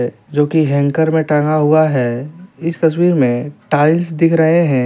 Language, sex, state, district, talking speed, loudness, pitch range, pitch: Hindi, male, Jharkhand, Deoghar, 175 wpm, -14 LUFS, 145-165 Hz, 155 Hz